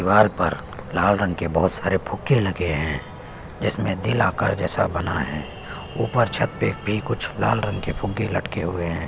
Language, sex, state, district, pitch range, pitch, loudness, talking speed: Hindi, male, Chhattisgarh, Sukma, 85-105 Hz, 95 Hz, -23 LUFS, 190 wpm